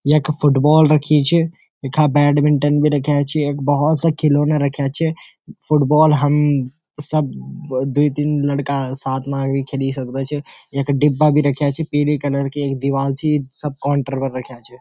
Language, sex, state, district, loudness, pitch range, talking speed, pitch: Garhwali, male, Uttarakhand, Uttarkashi, -17 LUFS, 140-150 Hz, 175 wpm, 145 Hz